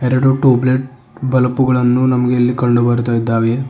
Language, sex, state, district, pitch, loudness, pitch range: Kannada, male, Karnataka, Bidar, 125 Hz, -14 LUFS, 120-130 Hz